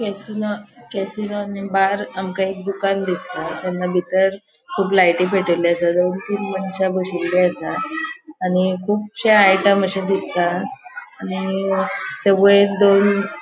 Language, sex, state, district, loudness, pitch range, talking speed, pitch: Konkani, female, Goa, North and South Goa, -19 LUFS, 185-205 Hz, 125 wpm, 195 Hz